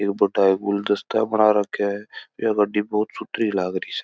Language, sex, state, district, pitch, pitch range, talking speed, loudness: Marwari, male, Rajasthan, Churu, 105 Hz, 100-105 Hz, 165 wpm, -22 LUFS